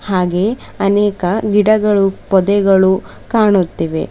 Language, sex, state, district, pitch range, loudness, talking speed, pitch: Kannada, female, Karnataka, Bidar, 190-210 Hz, -14 LUFS, 75 wpm, 200 Hz